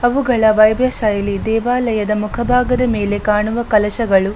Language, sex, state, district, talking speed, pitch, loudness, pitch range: Kannada, female, Karnataka, Dakshina Kannada, 125 wpm, 220 Hz, -15 LUFS, 210-245 Hz